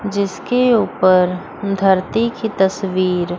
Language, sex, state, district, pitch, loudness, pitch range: Hindi, female, Chandigarh, Chandigarh, 195 Hz, -17 LUFS, 185-220 Hz